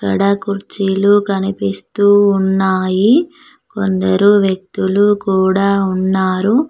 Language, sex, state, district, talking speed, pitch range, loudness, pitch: Telugu, female, Telangana, Mahabubabad, 70 wpm, 190-205 Hz, -14 LUFS, 195 Hz